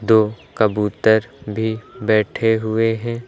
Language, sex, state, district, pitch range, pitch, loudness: Hindi, male, Uttar Pradesh, Lucknow, 105-115 Hz, 110 Hz, -19 LUFS